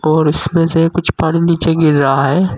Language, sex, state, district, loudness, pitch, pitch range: Hindi, male, Uttar Pradesh, Saharanpur, -13 LUFS, 165 Hz, 150-170 Hz